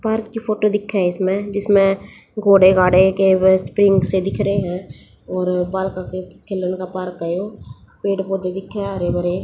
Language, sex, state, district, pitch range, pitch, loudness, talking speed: Hindi, female, Haryana, Jhajjar, 185-200 Hz, 190 Hz, -18 LUFS, 185 wpm